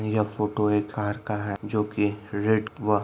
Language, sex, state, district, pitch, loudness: Hindi, male, Maharashtra, Dhule, 105 Hz, -26 LUFS